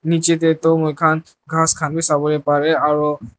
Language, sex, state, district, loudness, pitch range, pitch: Nagamese, male, Nagaland, Dimapur, -17 LUFS, 150-160 Hz, 160 Hz